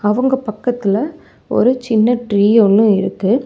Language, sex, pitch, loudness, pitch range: Tamil, female, 225 Hz, -14 LUFS, 205-250 Hz